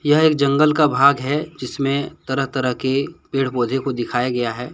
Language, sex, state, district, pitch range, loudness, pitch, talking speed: Hindi, male, Jharkhand, Deoghar, 130-145 Hz, -19 LUFS, 135 Hz, 200 wpm